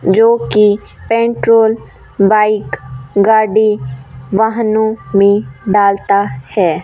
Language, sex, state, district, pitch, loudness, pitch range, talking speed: Hindi, female, Rajasthan, Bikaner, 205 Hz, -12 LUFS, 185-220 Hz, 70 wpm